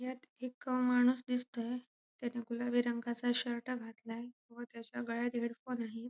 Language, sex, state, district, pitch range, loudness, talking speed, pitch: Marathi, female, Maharashtra, Sindhudurg, 235-250 Hz, -37 LUFS, 145 wpm, 245 Hz